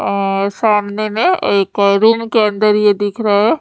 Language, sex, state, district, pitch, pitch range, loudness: Hindi, female, Haryana, Charkhi Dadri, 210 Hz, 200-220 Hz, -14 LUFS